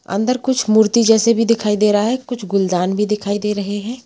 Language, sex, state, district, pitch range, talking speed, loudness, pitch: Hindi, female, Uttar Pradesh, Jalaun, 205-230 Hz, 235 wpm, -16 LUFS, 215 Hz